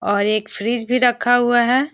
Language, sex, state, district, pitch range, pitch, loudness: Hindi, female, Bihar, Gaya, 215-245 Hz, 240 Hz, -17 LUFS